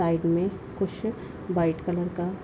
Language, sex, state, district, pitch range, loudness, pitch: Hindi, female, Bihar, Darbhanga, 170-190 Hz, -28 LUFS, 180 Hz